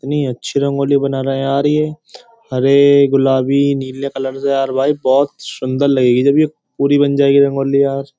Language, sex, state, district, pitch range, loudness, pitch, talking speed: Hindi, male, Uttar Pradesh, Jyotiba Phule Nagar, 135-140 Hz, -14 LUFS, 140 Hz, 185 wpm